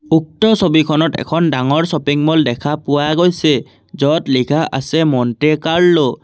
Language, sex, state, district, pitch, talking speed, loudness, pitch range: Assamese, male, Assam, Kamrup Metropolitan, 155 Hz, 145 wpm, -14 LUFS, 140-160 Hz